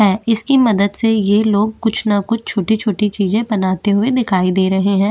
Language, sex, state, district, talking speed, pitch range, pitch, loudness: Hindi, female, Chhattisgarh, Bastar, 200 wpm, 200-220 Hz, 210 Hz, -15 LUFS